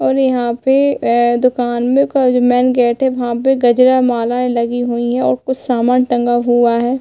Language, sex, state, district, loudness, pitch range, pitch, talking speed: Hindi, female, Uttar Pradesh, Hamirpur, -14 LUFS, 240-255 Hz, 245 Hz, 205 wpm